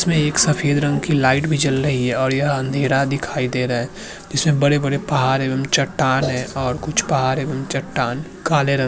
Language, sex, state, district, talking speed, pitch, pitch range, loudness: Hindi, male, Uttarakhand, Tehri Garhwal, 205 wpm, 140 Hz, 130-150 Hz, -19 LUFS